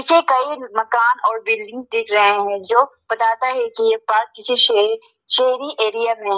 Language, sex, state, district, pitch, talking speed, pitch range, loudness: Hindi, female, Arunachal Pradesh, Lower Dibang Valley, 255 Hz, 180 wpm, 225-355 Hz, -17 LUFS